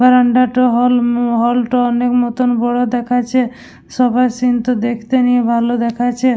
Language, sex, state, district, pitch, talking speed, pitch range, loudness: Bengali, female, West Bengal, Dakshin Dinajpur, 245 Hz, 150 wpm, 240-250 Hz, -14 LUFS